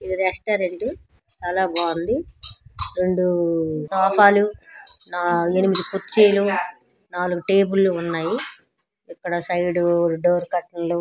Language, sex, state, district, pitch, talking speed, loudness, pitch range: Telugu, female, Andhra Pradesh, Srikakulam, 180 Hz, 110 wpm, -21 LUFS, 175-190 Hz